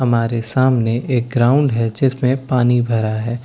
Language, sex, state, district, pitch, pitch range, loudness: Hindi, male, Bihar, Katihar, 120 Hz, 115-130 Hz, -17 LUFS